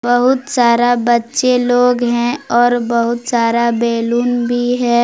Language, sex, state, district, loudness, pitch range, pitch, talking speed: Hindi, female, Jharkhand, Palamu, -14 LUFS, 235-245 Hz, 240 Hz, 130 wpm